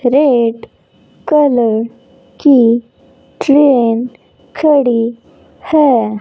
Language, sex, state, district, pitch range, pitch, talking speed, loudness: Hindi, female, Rajasthan, Bikaner, 230-285 Hz, 245 Hz, 60 wpm, -12 LUFS